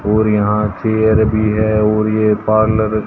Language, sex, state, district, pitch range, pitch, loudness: Hindi, male, Haryana, Jhajjar, 105-110 Hz, 110 Hz, -14 LUFS